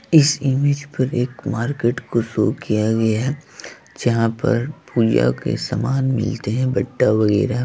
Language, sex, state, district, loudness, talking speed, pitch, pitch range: Hindi, female, Bihar, Begusarai, -19 LUFS, 150 wpm, 125 Hz, 115-135 Hz